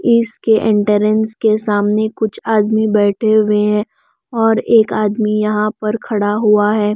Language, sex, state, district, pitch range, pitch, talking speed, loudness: Hindi, female, Bihar, West Champaran, 210-220 Hz, 215 Hz, 145 wpm, -14 LUFS